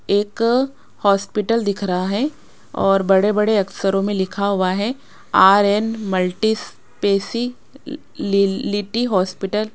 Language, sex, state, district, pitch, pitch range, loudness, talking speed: Hindi, female, Rajasthan, Jaipur, 205 Hz, 195-225 Hz, -19 LUFS, 125 wpm